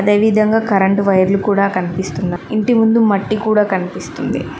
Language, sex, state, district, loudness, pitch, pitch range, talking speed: Telugu, female, Telangana, Mahabubabad, -15 LUFS, 200 Hz, 190-215 Hz, 145 wpm